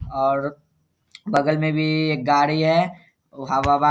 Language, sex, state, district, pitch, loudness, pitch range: Hindi, male, Bihar, Saharsa, 150 Hz, -21 LUFS, 140-155 Hz